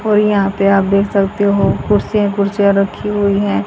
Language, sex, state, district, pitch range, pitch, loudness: Hindi, female, Haryana, Jhajjar, 200-205 Hz, 200 Hz, -14 LUFS